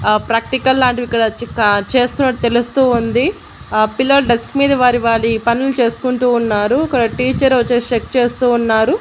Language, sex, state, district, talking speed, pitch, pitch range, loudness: Telugu, female, Andhra Pradesh, Annamaya, 145 wpm, 245 Hz, 230-260 Hz, -14 LUFS